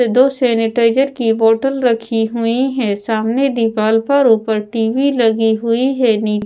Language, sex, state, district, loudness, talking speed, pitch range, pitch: Hindi, female, Bihar, Patna, -15 LUFS, 150 wpm, 225-255 Hz, 230 Hz